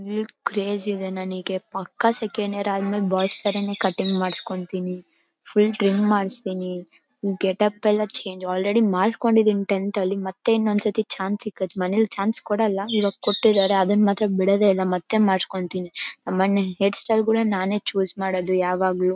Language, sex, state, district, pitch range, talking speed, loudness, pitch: Kannada, female, Karnataka, Bellary, 190-210 Hz, 155 wpm, -22 LUFS, 200 Hz